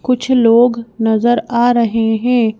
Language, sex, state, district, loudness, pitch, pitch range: Hindi, female, Madhya Pradesh, Bhopal, -13 LUFS, 235 Hz, 225-245 Hz